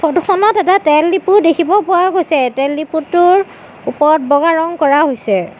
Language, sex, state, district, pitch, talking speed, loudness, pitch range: Assamese, female, Assam, Sonitpur, 330 Hz, 140 wpm, -12 LUFS, 300-370 Hz